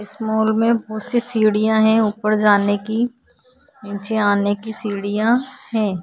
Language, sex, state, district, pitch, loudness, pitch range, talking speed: Hindi, female, Maharashtra, Chandrapur, 220 Hz, -19 LUFS, 210-230 Hz, 150 wpm